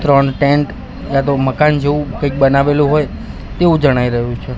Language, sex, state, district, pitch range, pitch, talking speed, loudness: Gujarati, male, Gujarat, Gandhinagar, 135-145 Hz, 140 Hz, 155 wpm, -14 LUFS